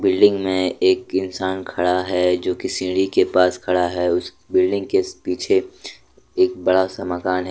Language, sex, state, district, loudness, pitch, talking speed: Hindi, male, Jharkhand, Deoghar, -20 LUFS, 95 Hz, 170 wpm